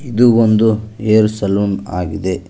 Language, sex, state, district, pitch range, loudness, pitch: Kannada, male, Karnataka, Koppal, 100-110 Hz, -14 LUFS, 110 Hz